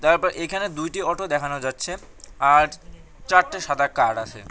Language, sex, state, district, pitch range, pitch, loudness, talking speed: Bengali, male, West Bengal, Cooch Behar, 130-180 Hz, 150 Hz, -22 LUFS, 145 wpm